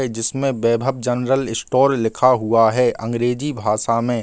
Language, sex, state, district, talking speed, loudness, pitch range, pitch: Hindi, male, Bihar, Gaya, 155 wpm, -18 LUFS, 115-130 Hz, 120 Hz